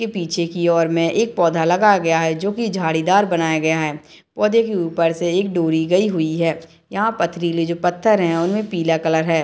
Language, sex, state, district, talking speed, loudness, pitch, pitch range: Hindi, female, Bihar, Madhepura, 210 wpm, -18 LUFS, 170 Hz, 165-195 Hz